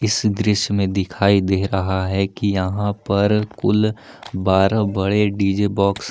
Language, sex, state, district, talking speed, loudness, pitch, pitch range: Hindi, male, Jharkhand, Palamu, 155 wpm, -19 LUFS, 100 Hz, 95-105 Hz